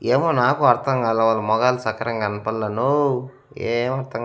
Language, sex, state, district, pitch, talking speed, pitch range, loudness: Telugu, male, Andhra Pradesh, Annamaya, 120 Hz, 140 wpm, 110-130 Hz, -20 LUFS